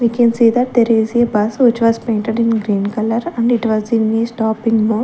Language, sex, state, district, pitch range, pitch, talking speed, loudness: English, female, Chandigarh, Chandigarh, 220-235 Hz, 230 Hz, 250 wpm, -15 LUFS